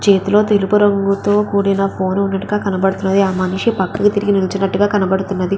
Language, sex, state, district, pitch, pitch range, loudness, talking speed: Telugu, female, Andhra Pradesh, Visakhapatnam, 195 Hz, 190-205 Hz, -15 LUFS, 140 wpm